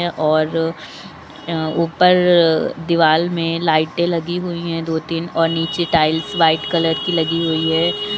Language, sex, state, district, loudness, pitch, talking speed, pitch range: Hindi, female, Uttar Pradesh, Lucknow, -17 LUFS, 165 Hz, 145 wpm, 160-170 Hz